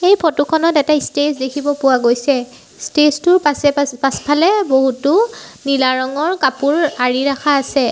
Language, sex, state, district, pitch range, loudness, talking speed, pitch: Assamese, female, Assam, Sonitpur, 265-305 Hz, -15 LUFS, 145 wpm, 285 Hz